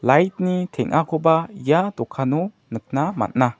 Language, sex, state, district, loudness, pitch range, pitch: Garo, male, Meghalaya, West Garo Hills, -21 LUFS, 130-180 Hz, 155 Hz